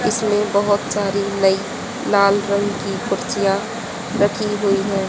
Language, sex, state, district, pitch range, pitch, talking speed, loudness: Hindi, female, Haryana, Charkhi Dadri, 195-205 Hz, 200 Hz, 130 wpm, -19 LUFS